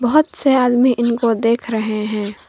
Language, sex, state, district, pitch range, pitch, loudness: Hindi, female, Jharkhand, Garhwa, 220-250 Hz, 235 Hz, -16 LUFS